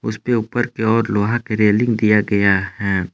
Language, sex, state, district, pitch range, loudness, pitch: Hindi, male, Jharkhand, Palamu, 100-115 Hz, -17 LUFS, 105 Hz